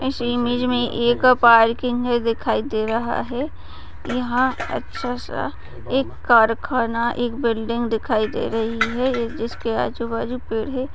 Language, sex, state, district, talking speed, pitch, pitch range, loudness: Hindi, female, Chhattisgarh, Kabirdham, 135 wpm, 240 Hz, 230-250 Hz, -21 LUFS